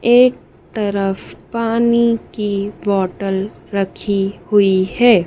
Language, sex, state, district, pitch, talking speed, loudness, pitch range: Hindi, female, Madhya Pradesh, Dhar, 200 Hz, 90 wpm, -17 LUFS, 195-230 Hz